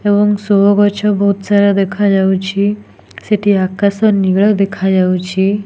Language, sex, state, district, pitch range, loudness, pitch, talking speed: Odia, female, Odisha, Nuapada, 190-205 Hz, -13 LUFS, 200 Hz, 105 wpm